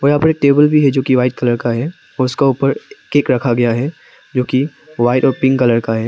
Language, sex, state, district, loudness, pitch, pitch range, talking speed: Hindi, male, Arunachal Pradesh, Papum Pare, -15 LUFS, 135 Hz, 120-145 Hz, 255 wpm